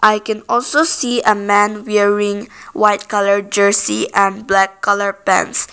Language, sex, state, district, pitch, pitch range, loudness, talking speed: English, female, Nagaland, Kohima, 205 Hz, 200-215 Hz, -15 LUFS, 145 wpm